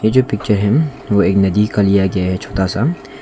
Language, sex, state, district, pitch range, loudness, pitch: Hindi, male, Arunachal Pradesh, Longding, 100-125 Hz, -15 LUFS, 105 Hz